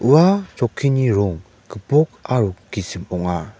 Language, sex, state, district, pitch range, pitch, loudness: Garo, male, Meghalaya, West Garo Hills, 95-135 Hz, 105 Hz, -19 LUFS